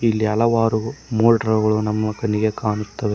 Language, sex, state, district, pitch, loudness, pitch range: Kannada, male, Karnataka, Koppal, 110 Hz, -19 LUFS, 105-115 Hz